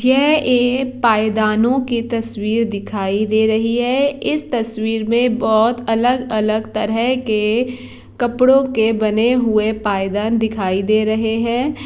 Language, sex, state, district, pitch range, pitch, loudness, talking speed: Hindi, female, Bihar, Jahanabad, 215-245 Hz, 225 Hz, -17 LUFS, 135 wpm